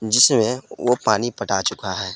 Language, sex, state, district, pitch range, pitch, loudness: Hindi, male, Jharkhand, Palamu, 95-120 Hz, 110 Hz, -19 LUFS